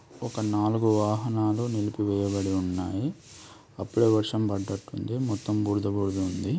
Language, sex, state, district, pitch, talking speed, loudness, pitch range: Telugu, male, Andhra Pradesh, Srikakulam, 105 Hz, 120 wpm, -27 LUFS, 100-110 Hz